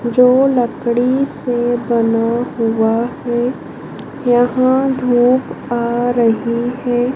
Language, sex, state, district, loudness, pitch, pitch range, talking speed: Hindi, female, Madhya Pradesh, Dhar, -15 LUFS, 245 Hz, 235-250 Hz, 90 wpm